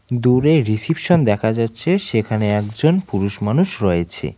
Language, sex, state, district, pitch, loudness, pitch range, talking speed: Bengali, male, West Bengal, Cooch Behar, 115 Hz, -17 LUFS, 105-155 Hz, 125 wpm